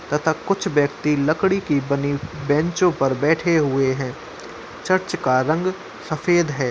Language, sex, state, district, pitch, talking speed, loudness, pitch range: Hindi, male, Uttar Pradesh, Muzaffarnagar, 150 Hz, 145 wpm, -20 LUFS, 140-175 Hz